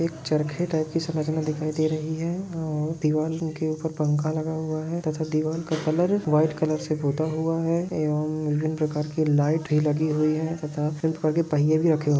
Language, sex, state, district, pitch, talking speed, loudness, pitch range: Hindi, male, Goa, North and South Goa, 155 Hz, 210 wpm, -25 LUFS, 155-160 Hz